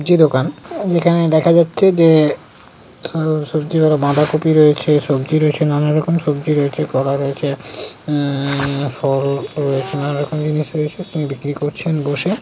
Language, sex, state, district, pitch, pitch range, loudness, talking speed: Bengali, male, West Bengal, Kolkata, 150 Hz, 145-160 Hz, -16 LUFS, 135 wpm